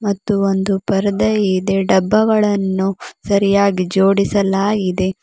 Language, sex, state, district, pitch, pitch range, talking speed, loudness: Kannada, female, Karnataka, Bidar, 200 Hz, 190-205 Hz, 80 wpm, -16 LUFS